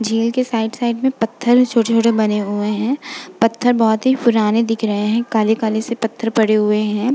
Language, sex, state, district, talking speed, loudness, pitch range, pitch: Hindi, female, Uttar Pradesh, Jalaun, 195 wpm, -17 LUFS, 220-240 Hz, 225 Hz